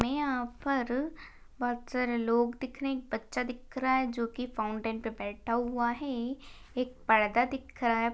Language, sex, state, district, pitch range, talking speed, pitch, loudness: Hindi, female, Maharashtra, Pune, 235-260 Hz, 190 wpm, 245 Hz, -32 LUFS